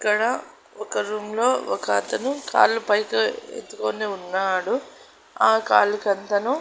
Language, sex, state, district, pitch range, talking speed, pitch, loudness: Telugu, female, Andhra Pradesh, Annamaya, 195-255 Hz, 120 wpm, 210 Hz, -22 LUFS